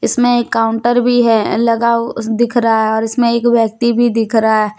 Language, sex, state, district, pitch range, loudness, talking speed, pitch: Hindi, female, Jharkhand, Deoghar, 225-240 Hz, -13 LUFS, 225 wpm, 230 Hz